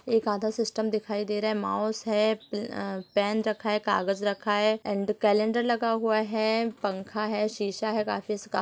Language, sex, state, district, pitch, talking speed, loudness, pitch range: Hindi, female, Uttar Pradesh, Etah, 215 Hz, 195 wpm, -28 LUFS, 205-220 Hz